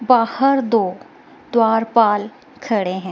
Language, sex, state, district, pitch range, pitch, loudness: Hindi, female, Himachal Pradesh, Shimla, 210-265 Hz, 230 Hz, -17 LUFS